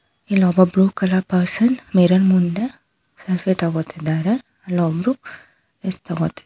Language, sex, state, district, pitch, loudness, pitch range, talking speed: Kannada, female, Karnataka, Bangalore, 185 Hz, -19 LUFS, 175-195 Hz, 100 wpm